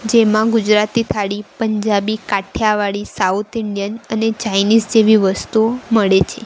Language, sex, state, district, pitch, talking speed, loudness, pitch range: Gujarati, female, Gujarat, Valsad, 215 Hz, 120 wpm, -16 LUFS, 205-225 Hz